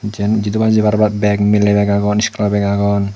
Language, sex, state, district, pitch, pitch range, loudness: Chakma, male, Tripura, Unakoti, 105 Hz, 100-105 Hz, -14 LUFS